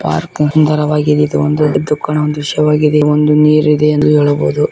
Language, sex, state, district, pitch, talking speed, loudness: Kannada, male, Karnataka, Bijapur, 150 Hz, 125 wpm, -12 LUFS